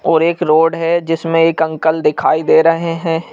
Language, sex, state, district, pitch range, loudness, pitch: Hindi, male, Madhya Pradesh, Bhopal, 160-165 Hz, -14 LUFS, 165 Hz